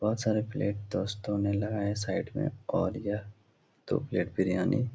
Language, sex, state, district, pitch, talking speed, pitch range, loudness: Hindi, male, Uttar Pradesh, Etah, 105 Hz, 170 wpm, 100-110 Hz, -31 LUFS